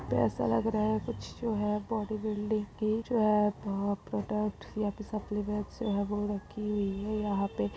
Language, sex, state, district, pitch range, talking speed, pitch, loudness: Magahi, female, Bihar, Gaya, 200-215 Hz, 110 wpm, 210 Hz, -32 LUFS